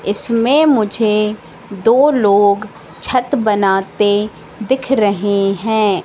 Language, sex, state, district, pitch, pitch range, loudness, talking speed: Hindi, female, Madhya Pradesh, Katni, 210 Hz, 200-235 Hz, -14 LUFS, 90 wpm